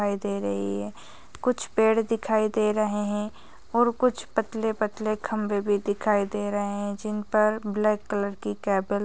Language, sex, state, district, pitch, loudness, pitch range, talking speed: Hindi, female, Chhattisgarh, Bastar, 210 Hz, -26 LUFS, 205-220 Hz, 170 wpm